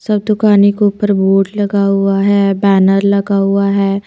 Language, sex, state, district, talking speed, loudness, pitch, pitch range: Hindi, female, Himachal Pradesh, Shimla, 175 wpm, -12 LUFS, 200 Hz, 195-205 Hz